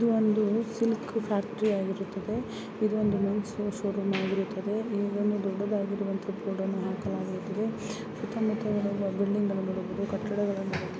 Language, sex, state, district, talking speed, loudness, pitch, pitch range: Kannada, female, Karnataka, Mysore, 105 wpm, -30 LUFS, 205 Hz, 195-215 Hz